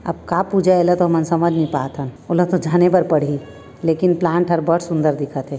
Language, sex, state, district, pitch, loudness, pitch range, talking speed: Chhattisgarhi, female, Chhattisgarh, Raigarh, 170 Hz, -18 LUFS, 150-175 Hz, 245 wpm